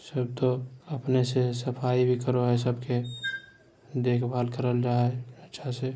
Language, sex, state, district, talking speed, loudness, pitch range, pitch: Hindi, male, Bihar, Jamui, 140 wpm, -28 LUFS, 125-130 Hz, 125 Hz